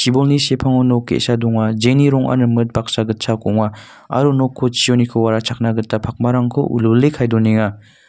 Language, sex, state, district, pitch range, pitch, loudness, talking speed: Garo, male, Meghalaya, North Garo Hills, 115-130 Hz, 120 Hz, -16 LUFS, 150 wpm